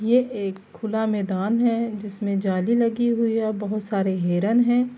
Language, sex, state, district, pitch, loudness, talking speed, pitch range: Urdu, female, Andhra Pradesh, Anantapur, 215 Hz, -23 LUFS, 170 wpm, 200-235 Hz